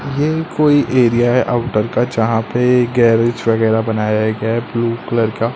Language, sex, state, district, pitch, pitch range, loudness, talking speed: Hindi, male, Madhya Pradesh, Katni, 115 Hz, 115-125 Hz, -15 LUFS, 175 wpm